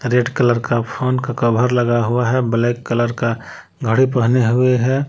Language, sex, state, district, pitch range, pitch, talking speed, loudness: Hindi, male, Jharkhand, Palamu, 120-125 Hz, 120 Hz, 190 wpm, -17 LUFS